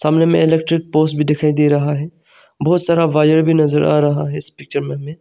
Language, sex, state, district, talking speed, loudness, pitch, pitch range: Hindi, male, Arunachal Pradesh, Longding, 230 wpm, -15 LUFS, 155 Hz, 150-165 Hz